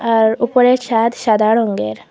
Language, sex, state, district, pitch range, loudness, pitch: Bengali, female, Assam, Hailakandi, 220-240 Hz, -15 LUFS, 225 Hz